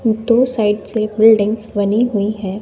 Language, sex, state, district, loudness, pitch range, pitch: Hindi, female, Bihar, West Champaran, -15 LUFS, 205-225 Hz, 215 Hz